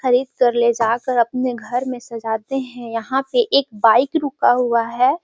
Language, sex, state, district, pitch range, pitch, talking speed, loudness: Hindi, female, Bihar, Gaya, 235-265 Hz, 250 Hz, 185 wpm, -19 LUFS